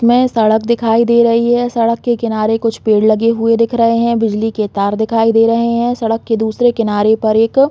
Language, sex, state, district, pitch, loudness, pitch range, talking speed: Hindi, female, Chhattisgarh, Bastar, 230 Hz, -13 LUFS, 220-235 Hz, 225 wpm